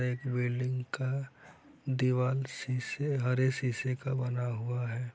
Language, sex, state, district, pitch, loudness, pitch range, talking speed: Hindi, male, Bihar, East Champaran, 125 Hz, -33 LUFS, 125-130 Hz, 130 wpm